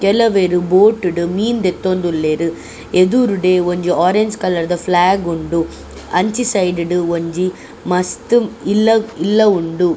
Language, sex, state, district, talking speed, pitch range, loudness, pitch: Tulu, female, Karnataka, Dakshina Kannada, 115 wpm, 175-210 Hz, -15 LUFS, 185 Hz